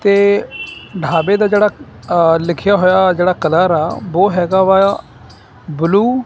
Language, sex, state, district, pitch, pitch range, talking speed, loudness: Punjabi, male, Punjab, Kapurthala, 185 Hz, 165-200 Hz, 155 wpm, -13 LUFS